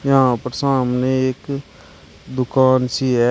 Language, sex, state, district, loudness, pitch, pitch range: Hindi, male, Uttar Pradesh, Shamli, -18 LUFS, 130 Hz, 120-130 Hz